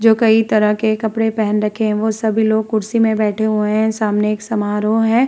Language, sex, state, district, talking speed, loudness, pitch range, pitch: Hindi, female, Uttar Pradesh, Muzaffarnagar, 225 wpm, -16 LUFS, 210-220 Hz, 220 Hz